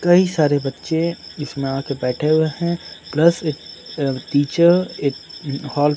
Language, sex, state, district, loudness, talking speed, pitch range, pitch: Hindi, male, Bihar, Patna, -20 LUFS, 140 wpm, 140-170 Hz, 150 Hz